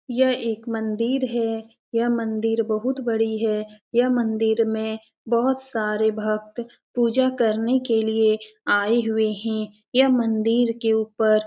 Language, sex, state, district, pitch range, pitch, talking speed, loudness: Hindi, female, Uttar Pradesh, Etah, 220-240 Hz, 225 Hz, 140 wpm, -22 LUFS